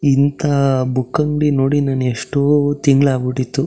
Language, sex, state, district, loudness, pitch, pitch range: Kannada, male, Karnataka, Shimoga, -16 LUFS, 140 Hz, 130-145 Hz